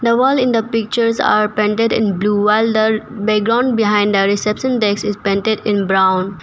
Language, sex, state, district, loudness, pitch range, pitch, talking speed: English, female, Arunachal Pradesh, Papum Pare, -15 LUFS, 205-230 Hz, 215 Hz, 185 wpm